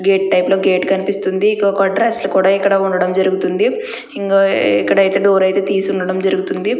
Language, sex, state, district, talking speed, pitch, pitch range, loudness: Telugu, female, Andhra Pradesh, Chittoor, 150 wpm, 195 Hz, 190-195 Hz, -15 LUFS